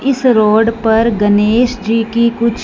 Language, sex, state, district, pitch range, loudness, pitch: Hindi, female, Punjab, Fazilka, 220-235 Hz, -12 LUFS, 230 Hz